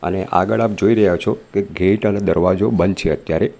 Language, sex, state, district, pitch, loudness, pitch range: Gujarati, male, Gujarat, Valsad, 95 Hz, -17 LUFS, 90-105 Hz